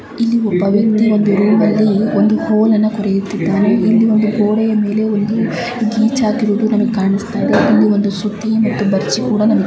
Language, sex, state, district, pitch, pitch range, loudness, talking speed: Kannada, female, Karnataka, Bijapur, 215 Hz, 205-220 Hz, -14 LUFS, 135 wpm